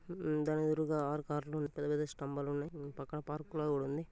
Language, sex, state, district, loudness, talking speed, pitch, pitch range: Telugu, male, Telangana, Nalgonda, -38 LUFS, 175 wpm, 150 Hz, 145-155 Hz